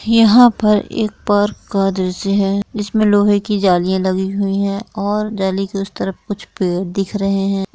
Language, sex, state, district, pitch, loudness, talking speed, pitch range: Hindi, female, Bihar, Jahanabad, 200 Hz, -16 LUFS, 185 wpm, 195-210 Hz